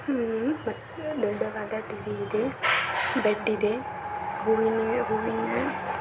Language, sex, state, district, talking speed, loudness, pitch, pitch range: Kannada, female, Karnataka, Belgaum, 70 wpm, -28 LUFS, 220 Hz, 215-285 Hz